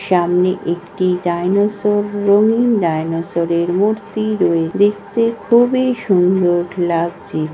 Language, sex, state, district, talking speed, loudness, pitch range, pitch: Bengali, female, West Bengal, North 24 Parganas, 95 wpm, -16 LUFS, 175-210 Hz, 185 Hz